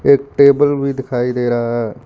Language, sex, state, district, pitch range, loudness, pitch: Hindi, male, Punjab, Fazilka, 120-140 Hz, -15 LUFS, 130 Hz